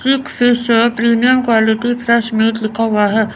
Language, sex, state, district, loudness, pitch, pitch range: Hindi, female, Chandigarh, Chandigarh, -14 LUFS, 235 Hz, 220-245 Hz